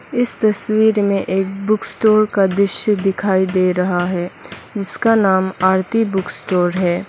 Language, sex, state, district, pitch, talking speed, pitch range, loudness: Hindi, female, Mizoram, Aizawl, 195 Hz, 150 wpm, 185-215 Hz, -17 LUFS